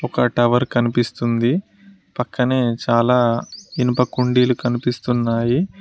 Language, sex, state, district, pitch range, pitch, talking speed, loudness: Telugu, male, Telangana, Mahabubabad, 120-125 Hz, 120 Hz, 85 wpm, -19 LUFS